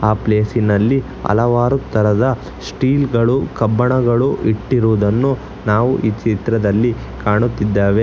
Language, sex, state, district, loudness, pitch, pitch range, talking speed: Kannada, male, Karnataka, Bangalore, -16 LUFS, 115 Hz, 105-125 Hz, 90 wpm